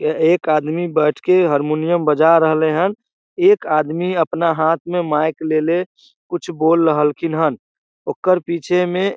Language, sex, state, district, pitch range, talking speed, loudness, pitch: Maithili, male, Bihar, Samastipur, 155-175 Hz, 155 wpm, -17 LUFS, 165 Hz